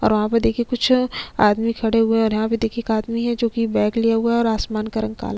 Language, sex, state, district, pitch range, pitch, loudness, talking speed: Hindi, female, Chhattisgarh, Sukma, 220-230 Hz, 225 Hz, -20 LUFS, 310 wpm